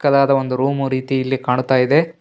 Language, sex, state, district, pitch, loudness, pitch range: Kannada, male, Karnataka, Bellary, 135 Hz, -17 LUFS, 130-140 Hz